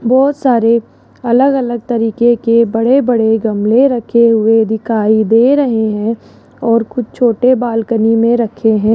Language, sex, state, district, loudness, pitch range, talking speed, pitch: Hindi, female, Rajasthan, Jaipur, -12 LUFS, 225-245 Hz, 135 wpm, 230 Hz